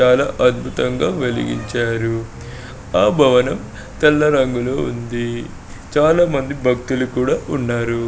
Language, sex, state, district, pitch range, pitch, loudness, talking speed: Telugu, male, Andhra Pradesh, Srikakulam, 120-135 Hz, 125 Hz, -18 LUFS, 95 wpm